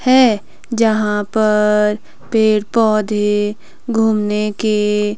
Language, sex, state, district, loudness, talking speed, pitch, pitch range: Hindi, female, Himachal Pradesh, Shimla, -16 LUFS, 80 wpm, 210 Hz, 210-220 Hz